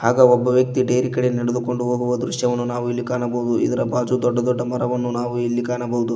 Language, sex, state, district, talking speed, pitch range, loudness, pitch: Kannada, male, Karnataka, Koppal, 185 wpm, 120-125 Hz, -20 LUFS, 120 Hz